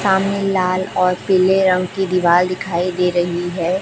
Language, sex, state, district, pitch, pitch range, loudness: Hindi, female, Chhattisgarh, Raipur, 185 Hz, 180-190 Hz, -17 LUFS